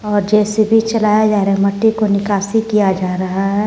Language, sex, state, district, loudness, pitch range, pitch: Hindi, female, Jharkhand, Garhwa, -15 LUFS, 195-215 Hz, 210 Hz